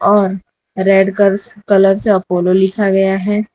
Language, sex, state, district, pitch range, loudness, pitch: Hindi, female, Gujarat, Valsad, 190-205 Hz, -13 LUFS, 195 Hz